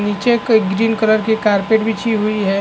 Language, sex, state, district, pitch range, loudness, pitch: Hindi, male, Chhattisgarh, Bastar, 205-225 Hz, -15 LUFS, 220 Hz